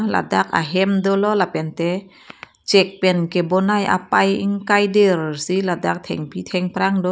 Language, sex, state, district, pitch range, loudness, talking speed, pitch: Karbi, female, Assam, Karbi Anglong, 175-200 Hz, -19 LUFS, 120 wpm, 190 Hz